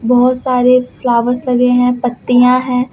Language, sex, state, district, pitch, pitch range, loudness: Hindi, female, Uttar Pradesh, Lucknow, 250 Hz, 245-250 Hz, -12 LUFS